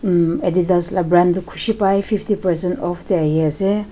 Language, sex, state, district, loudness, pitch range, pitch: Nagamese, female, Nagaland, Dimapur, -16 LUFS, 175-195 Hz, 180 Hz